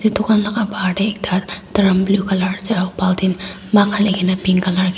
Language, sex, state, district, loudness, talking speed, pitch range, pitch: Nagamese, female, Nagaland, Dimapur, -17 LUFS, 205 wpm, 185-205 Hz, 190 Hz